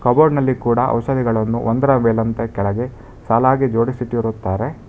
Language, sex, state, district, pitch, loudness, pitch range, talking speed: Kannada, male, Karnataka, Bangalore, 120 Hz, -17 LUFS, 115-130 Hz, 110 wpm